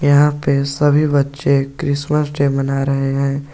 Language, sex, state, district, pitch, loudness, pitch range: Hindi, male, Jharkhand, Garhwa, 140 Hz, -16 LUFS, 140-145 Hz